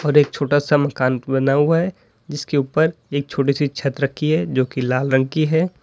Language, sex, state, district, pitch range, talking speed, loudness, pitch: Hindi, male, Uttar Pradesh, Lalitpur, 135-150 Hz, 225 wpm, -19 LUFS, 145 Hz